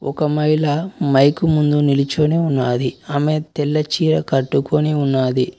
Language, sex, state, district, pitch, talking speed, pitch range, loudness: Telugu, male, Telangana, Mahabubabad, 150 Hz, 120 wpm, 140-155 Hz, -17 LUFS